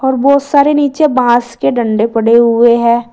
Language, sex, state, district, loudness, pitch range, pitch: Hindi, female, Uttar Pradesh, Saharanpur, -10 LUFS, 235-280 Hz, 240 Hz